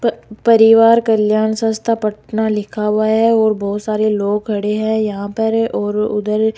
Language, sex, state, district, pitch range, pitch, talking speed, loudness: Hindi, female, Rajasthan, Jaipur, 210-225 Hz, 215 Hz, 175 wpm, -15 LUFS